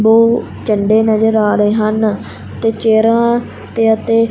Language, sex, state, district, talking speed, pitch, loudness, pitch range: Punjabi, male, Punjab, Fazilka, 140 wpm, 220 Hz, -13 LUFS, 215-230 Hz